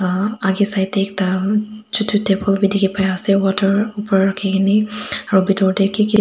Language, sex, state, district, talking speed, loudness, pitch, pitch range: Nagamese, female, Nagaland, Dimapur, 145 wpm, -17 LUFS, 195 Hz, 195-210 Hz